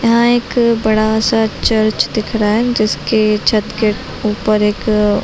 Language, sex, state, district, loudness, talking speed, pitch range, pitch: Hindi, female, Chhattisgarh, Bilaspur, -14 LUFS, 150 wpm, 210-230 Hz, 220 Hz